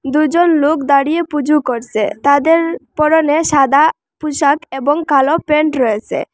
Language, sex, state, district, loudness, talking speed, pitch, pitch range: Bengali, female, Assam, Hailakandi, -14 LUFS, 125 wpm, 300 Hz, 280-315 Hz